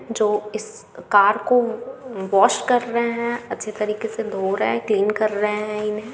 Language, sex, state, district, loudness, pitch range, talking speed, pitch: Hindi, female, Bihar, Gaya, -21 LUFS, 210-235 Hz, 185 wpm, 215 Hz